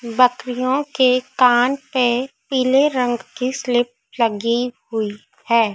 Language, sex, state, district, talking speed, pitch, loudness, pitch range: Hindi, female, Madhya Pradesh, Dhar, 115 wpm, 250 Hz, -19 LUFS, 235-260 Hz